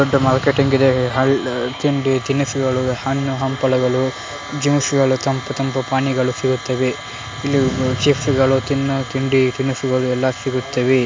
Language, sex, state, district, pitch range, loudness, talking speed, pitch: Kannada, male, Karnataka, Dharwad, 130-135 Hz, -18 LUFS, 125 wpm, 130 Hz